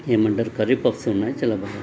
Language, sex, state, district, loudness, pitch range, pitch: Telugu, male, Andhra Pradesh, Guntur, -22 LUFS, 110-120 Hz, 110 Hz